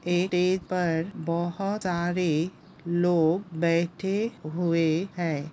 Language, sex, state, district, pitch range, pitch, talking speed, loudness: Hindi, female, Bihar, Begusarai, 165-185 Hz, 175 Hz, 85 wpm, -27 LUFS